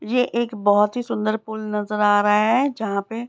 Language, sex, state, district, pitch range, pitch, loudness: Hindi, female, Bihar, Begusarai, 210-235 Hz, 215 Hz, -21 LUFS